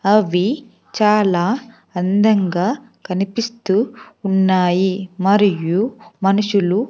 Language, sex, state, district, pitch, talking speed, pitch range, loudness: Telugu, female, Andhra Pradesh, Sri Satya Sai, 200 Hz, 60 wpm, 185-220 Hz, -18 LUFS